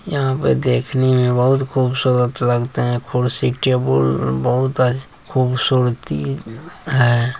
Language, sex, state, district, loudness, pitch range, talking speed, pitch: Maithili, male, Bihar, Samastipur, -17 LUFS, 120-130 Hz, 115 wpm, 125 Hz